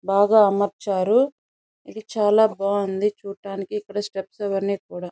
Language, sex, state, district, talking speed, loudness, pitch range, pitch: Telugu, female, Andhra Pradesh, Chittoor, 130 wpm, -22 LUFS, 195-210 Hz, 200 Hz